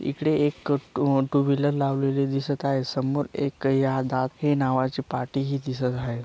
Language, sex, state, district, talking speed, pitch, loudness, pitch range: Marathi, male, Maharashtra, Dhule, 155 wpm, 135 Hz, -25 LUFS, 130-140 Hz